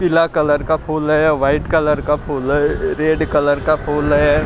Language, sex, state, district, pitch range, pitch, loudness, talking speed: Hindi, male, Maharashtra, Mumbai Suburban, 145-155 Hz, 150 Hz, -16 LUFS, 215 wpm